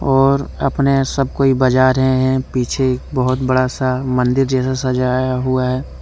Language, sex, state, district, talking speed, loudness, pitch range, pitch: Hindi, male, Jharkhand, Deoghar, 160 wpm, -16 LUFS, 130-135 Hz, 130 Hz